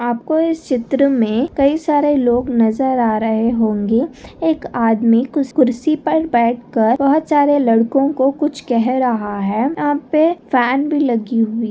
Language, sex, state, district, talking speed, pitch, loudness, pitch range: Hindi, female, Maharashtra, Nagpur, 165 wpm, 255 Hz, -16 LUFS, 230-290 Hz